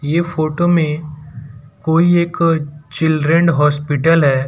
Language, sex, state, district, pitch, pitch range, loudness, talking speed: Hindi, male, Gujarat, Valsad, 155 Hz, 145-165 Hz, -15 LUFS, 105 wpm